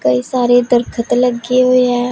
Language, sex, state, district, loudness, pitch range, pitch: Hindi, female, Punjab, Pathankot, -13 LUFS, 240-250 Hz, 245 Hz